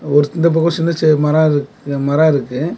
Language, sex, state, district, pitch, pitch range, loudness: Tamil, male, Tamil Nadu, Kanyakumari, 155 Hz, 145-165 Hz, -15 LUFS